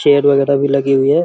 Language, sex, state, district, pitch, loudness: Hindi, male, Bihar, Samastipur, 140 Hz, -13 LUFS